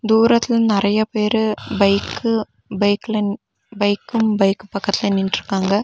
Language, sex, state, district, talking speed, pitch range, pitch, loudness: Tamil, female, Tamil Nadu, Nilgiris, 90 wpm, 200-220 Hz, 205 Hz, -18 LUFS